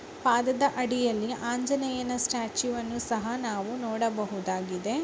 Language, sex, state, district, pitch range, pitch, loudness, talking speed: Kannada, female, Karnataka, Raichur, 220-250 Hz, 240 Hz, -29 LUFS, 85 wpm